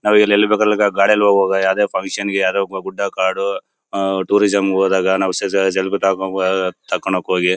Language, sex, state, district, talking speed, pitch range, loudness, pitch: Kannada, male, Karnataka, Bellary, 145 wpm, 95-100 Hz, -16 LUFS, 95 Hz